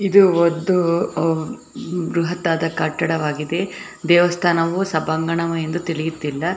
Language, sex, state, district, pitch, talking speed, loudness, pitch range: Kannada, female, Karnataka, Shimoga, 170 Hz, 80 wpm, -19 LUFS, 160-175 Hz